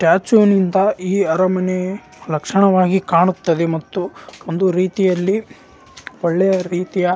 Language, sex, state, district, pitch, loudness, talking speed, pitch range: Kannada, male, Karnataka, Raichur, 185 Hz, -17 LUFS, 90 wpm, 180-195 Hz